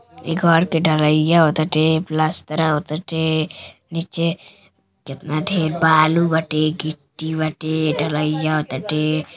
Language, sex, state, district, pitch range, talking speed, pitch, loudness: Bhojpuri, female, Uttar Pradesh, Deoria, 155-160 Hz, 120 wpm, 155 Hz, -19 LUFS